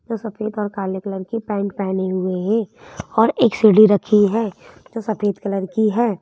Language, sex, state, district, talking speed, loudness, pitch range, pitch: Hindi, female, Madhya Pradesh, Bhopal, 195 wpm, -19 LUFS, 195-225 Hz, 210 Hz